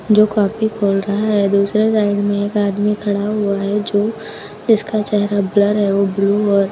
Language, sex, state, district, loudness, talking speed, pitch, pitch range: Hindi, female, Uttar Pradesh, Lucknow, -16 LUFS, 195 wpm, 205 Hz, 200-210 Hz